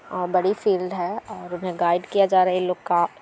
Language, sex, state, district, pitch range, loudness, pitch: Hindi, female, Bihar, Gaya, 175-185 Hz, -22 LUFS, 180 Hz